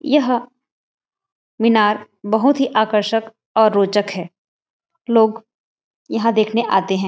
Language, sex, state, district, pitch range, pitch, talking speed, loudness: Hindi, female, Chhattisgarh, Raigarh, 210-250 Hz, 225 Hz, 110 wpm, -17 LUFS